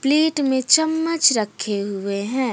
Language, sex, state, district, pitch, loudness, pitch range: Hindi, female, Jharkhand, Deoghar, 260 Hz, -19 LUFS, 205-310 Hz